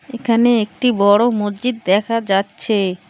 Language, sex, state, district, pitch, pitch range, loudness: Bengali, female, West Bengal, Cooch Behar, 220 Hz, 200-240 Hz, -16 LUFS